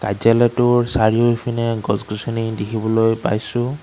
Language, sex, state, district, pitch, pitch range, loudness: Assamese, male, Assam, Kamrup Metropolitan, 115 Hz, 110-120 Hz, -18 LUFS